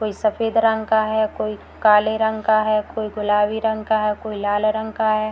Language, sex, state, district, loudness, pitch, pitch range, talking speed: Hindi, female, Bihar, Madhepura, -20 LUFS, 215 Hz, 215-220 Hz, 235 wpm